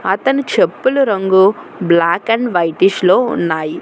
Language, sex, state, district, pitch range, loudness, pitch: Telugu, female, Telangana, Hyderabad, 175-240 Hz, -14 LUFS, 190 Hz